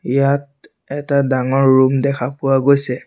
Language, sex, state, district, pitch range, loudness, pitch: Assamese, male, Assam, Sonitpur, 130-140 Hz, -16 LUFS, 135 Hz